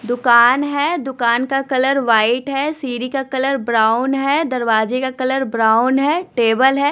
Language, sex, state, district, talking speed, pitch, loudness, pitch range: Hindi, female, Bihar, West Champaran, 165 wpm, 260 Hz, -16 LUFS, 235-275 Hz